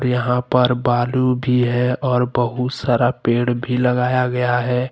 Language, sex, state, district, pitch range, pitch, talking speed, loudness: Hindi, male, Jharkhand, Deoghar, 120-125 Hz, 125 Hz, 160 wpm, -18 LUFS